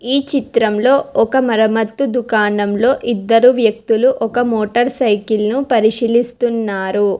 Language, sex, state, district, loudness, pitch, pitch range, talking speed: Telugu, female, Telangana, Hyderabad, -15 LUFS, 230 Hz, 220-250 Hz, 100 wpm